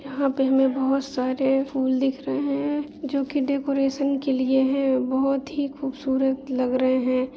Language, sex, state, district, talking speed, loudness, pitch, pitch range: Hindi, female, Jharkhand, Sahebganj, 170 wpm, -23 LUFS, 270 Hz, 265-275 Hz